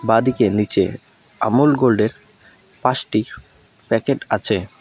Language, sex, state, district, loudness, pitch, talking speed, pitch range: Bengali, male, West Bengal, Alipurduar, -18 LUFS, 115 Hz, 85 wpm, 110-130 Hz